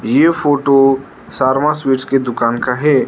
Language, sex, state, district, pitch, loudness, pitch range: Hindi, male, Arunachal Pradesh, Lower Dibang Valley, 135 Hz, -14 LUFS, 130-145 Hz